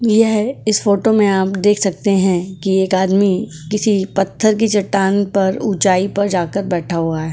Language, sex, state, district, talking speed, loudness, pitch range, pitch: Hindi, female, Goa, North and South Goa, 180 wpm, -16 LUFS, 190-210 Hz, 195 Hz